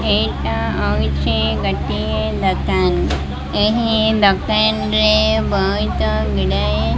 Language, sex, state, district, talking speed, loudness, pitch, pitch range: Odia, female, Odisha, Malkangiri, 75 wpm, -17 LUFS, 70 Hz, 70-75 Hz